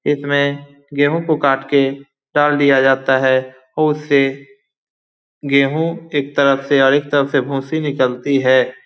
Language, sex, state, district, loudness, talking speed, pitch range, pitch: Hindi, male, Bihar, Lakhisarai, -16 LUFS, 165 wpm, 135-145 Hz, 140 Hz